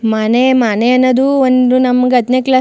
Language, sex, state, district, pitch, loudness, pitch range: Kannada, female, Karnataka, Chamarajanagar, 255 Hz, -11 LUFS, 245-255 Hz